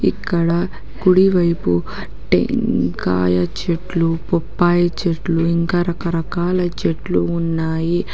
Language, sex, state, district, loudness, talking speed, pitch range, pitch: Telugu, female, Telangana, Hyderabad, -18 LUFS, 75 wpm, 165-175 Hz, 170 Hz